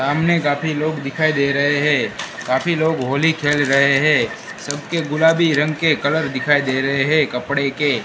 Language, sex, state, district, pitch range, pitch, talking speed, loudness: Hindi, male, Gujarat, Gandhinagar, 140-155 Hz, 145 Hz, 180 wpm, -17 LUFS